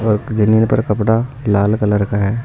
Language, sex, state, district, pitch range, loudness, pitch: Hindi, male, Uttar Pradesh, Saharanpur, 105-110 Hz, -15 LUFS, 105 Hz